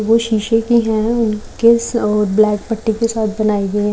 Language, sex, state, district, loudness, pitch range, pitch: Hindi, female, Chhattisgarh, Raipur, -15 LUFS, 210-230 Hz, 220 Hz